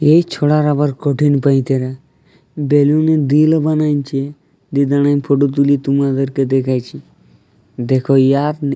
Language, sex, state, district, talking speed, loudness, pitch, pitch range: Bengali, male, Jharkhand, Jamtara, 115 wpm, -15 LUFS, 140 Hz, 135-150 Hz